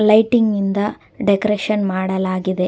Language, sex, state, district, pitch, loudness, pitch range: Kannada, female, Karnataka, Dakshina Kannada, 200 Hz, -18 LUFS, 190-215 Hz